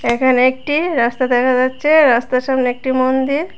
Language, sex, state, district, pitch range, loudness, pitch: Bengali, female, Tripura, West Tripura, 250-275 Hz, -15 LUFS, 260 Hz